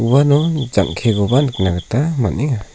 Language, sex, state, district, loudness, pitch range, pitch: Garo, male, Meghalaya, South Garo Hills, -16 LUFS, 100-145 Hz, 120 Hz